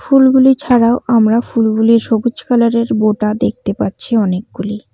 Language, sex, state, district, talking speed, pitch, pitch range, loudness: Bengali, female, West Bengal, Cooch Behar, 135 wpm, 230 Hz, 215-245 Hz, -13 LUFS